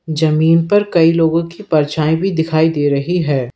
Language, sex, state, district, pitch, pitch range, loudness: Hindi, male, Uttar Pradesh, Lalitpur, 160 Hz, 155-165 Hz, -14 LUFS